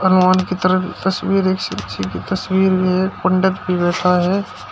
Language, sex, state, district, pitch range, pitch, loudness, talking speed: Hindi, male, Uttar Pradesh, Shamli, 180-190 Hz, 185 Hz, -17 LUFS, 180 wpm